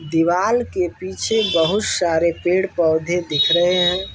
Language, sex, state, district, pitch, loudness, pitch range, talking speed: Hindi, male, Uttar Pradesh, Etah, 175 Hz, -18 LUFS, 165-185 Hz, 160 wpm